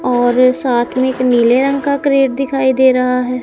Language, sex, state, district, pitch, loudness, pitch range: Hindi, female, Punjab, Kapurthala, 255 Hz, -13 LUFS, 250-270 Hz